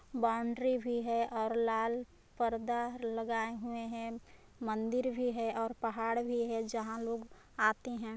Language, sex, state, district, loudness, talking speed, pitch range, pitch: Hindi, female, Chhattisgarh, Balrampur, -36 LUFS, 145 wpm, 225-240 Hz, 230 Hz